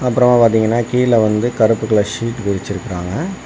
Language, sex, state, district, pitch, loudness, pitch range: Tamil, male, Tamil Nadu, Kanyakumari, 115 Hz, -15 LUFS, 105-120 Hz